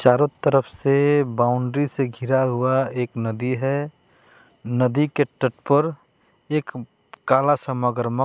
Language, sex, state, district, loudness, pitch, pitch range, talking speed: Hindi, male, Bihar, West Champaran, -21 LUFS, 130 Hz, 125-145 Hz, 140 wpm